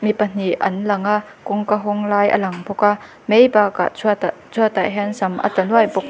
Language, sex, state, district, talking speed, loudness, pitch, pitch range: Mizo, female, Mizoram, Aizawl, 215 wpm, -18 LUFS, 205 Hz, 195-210 Hz